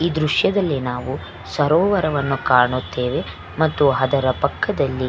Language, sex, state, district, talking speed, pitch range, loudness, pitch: Kannada, female, Karnataka, Belgaum, 105 wpm, 130-150 Hz, -19 LUFS, 135 Hz